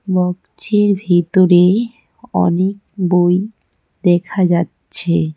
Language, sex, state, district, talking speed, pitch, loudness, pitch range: Bengali, female, West Bengal, Cooch Behar, 80 wpm, 180 Hz, -15 LUFS, 175-200 Hz